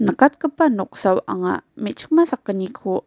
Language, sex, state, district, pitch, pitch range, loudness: Garo, female, Meghalaya, West Garo Hills, 265 Hz, 200-315 Hz, -20 LUFS